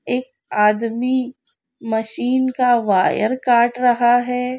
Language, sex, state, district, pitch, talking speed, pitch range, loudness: Hindi, female, Maharashtra, Aurangabad, 245 Hz, 105 wpm, 230-255 Hz, -18 LUFS